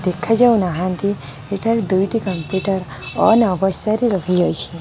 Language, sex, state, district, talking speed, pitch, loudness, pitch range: Odia, female, Odisha, Khordha, 100 wpm, 190 Hz, -18 LUFS, 180-215 Hz